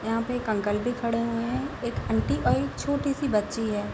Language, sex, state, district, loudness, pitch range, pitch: Hindi, female, Bihar, East Champaran, -27 LUFS, 215-245 Hz, 230 Hz